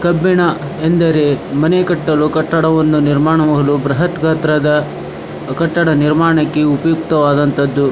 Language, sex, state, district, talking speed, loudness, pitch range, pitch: Kannada, male, Karnataka, Dharwad, 90 wpm, -13 LUFS, 145-165 Hz, 155 Hz